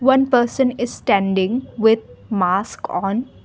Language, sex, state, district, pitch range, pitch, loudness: English, female, Assam, Kamrup Metropolitan, 195-250 Hz, 230 Hz, -19 LUFS